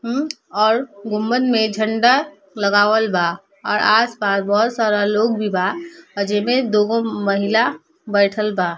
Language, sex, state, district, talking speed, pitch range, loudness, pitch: Bhojpuri, female, Bihar, East Champaran, 150 wpm, 200-230 Hz, -18 LUFS, 215 Hz